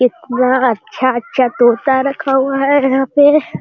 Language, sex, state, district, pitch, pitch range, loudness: Hindi, male, Bihar, Jamui, 260 Hz, 250-275 Hz, -13 LUFS